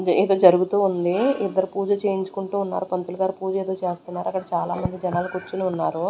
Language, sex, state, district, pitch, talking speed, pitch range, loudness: Telugu, female, Andhra Pradesh, Sri Satya Sai, 190 Hz, 185 wpm, 180-195 Hz, -23 LUFS